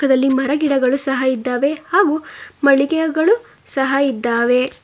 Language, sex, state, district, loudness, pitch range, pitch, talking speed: Kannada, female, Karnataka, Bangalore, -17 LUFS, 260-300 Hz, 275 Hz, 110 wpm